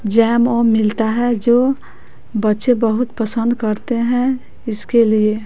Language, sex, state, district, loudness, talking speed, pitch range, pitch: Hindi, female, Bihar, West Champaran, -16 LUFS, 130 wpm, 220-240 Hz, 230 Hz